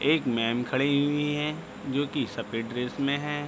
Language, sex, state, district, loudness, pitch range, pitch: Hindi, male, Bihar, Begusarai, -28 LUFS, 125-145 Hz, 140 Hz